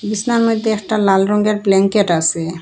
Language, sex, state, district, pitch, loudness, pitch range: Bengali, female, Assam, Hailakandi, 205 Hz, -15 LUFS, 195-215 Hz